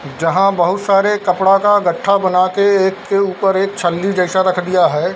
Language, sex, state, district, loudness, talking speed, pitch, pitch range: Hindi, male, Bihar, Darbhanga, -14 LUFS, 195 wpm, 190 Hz, 180-195 Hz